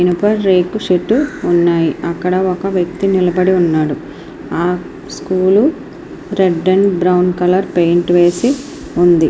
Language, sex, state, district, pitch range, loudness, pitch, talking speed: Telugu, female, Andhra Pradesh, Srikakulam, 175-200 Hz, -14 LUFS, 185 Hz, 115 wpm